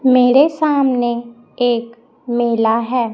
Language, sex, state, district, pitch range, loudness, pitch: Hindi, female, Chhattisgarh, Raipur, 235-255 Hz, -16 LUFS, 240 Hz